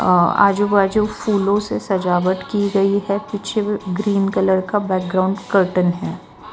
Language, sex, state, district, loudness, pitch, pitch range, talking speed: Hindi, female, Maharashtra, Gondia, -18 LUFS, 195 Hz, 185-205 Hz, 145 wpm